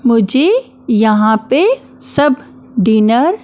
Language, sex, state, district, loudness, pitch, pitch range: Hindi, female, Maharashtra, Mumbai Suburban, -13 LUFS, 250 Hz, 220-295 Hz